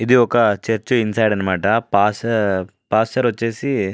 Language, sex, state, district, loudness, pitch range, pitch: Telugu, male, Andhra Pradesh, Anantapur, -18 LUFS, 100-115 Hz, 110 Hz